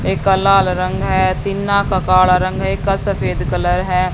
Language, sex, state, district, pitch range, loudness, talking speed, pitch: Hindi, female, Haryana, Jhajjar, 185-195 Hz, -16 LUFS, 215 wpm, 185 Hz